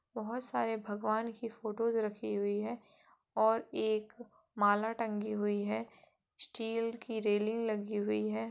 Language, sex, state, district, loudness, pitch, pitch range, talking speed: Hindi, female, Uttar Pradesh, Jalaun, -35 LUFS, 220 Hz, 210-230 Hz, 140 wpm